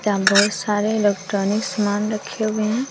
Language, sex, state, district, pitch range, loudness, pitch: Hindi, female, Bihar, West Champaran, 205-215 Hz, -20 LUFS, 210 Hz